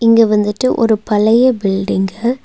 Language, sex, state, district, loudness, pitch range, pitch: Tamil, female, Tamil Nadu, Nilgiris, -13 LUFS, 210-235 Hz, 220 Hz